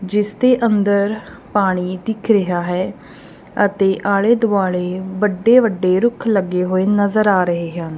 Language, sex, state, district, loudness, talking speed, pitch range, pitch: Punjabi, female, Punjab, Kapurthala, -17 LUFS, 135 wpm, 185-210 Hz, 200 Hz